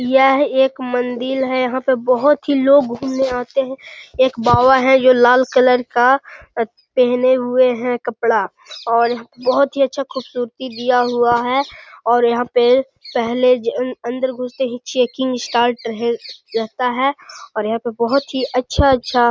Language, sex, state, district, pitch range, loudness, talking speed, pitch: Hindi, male, Bihar, Gaya, 240-265 Hz, -17 LUFS, 160 wpm, 250 Hz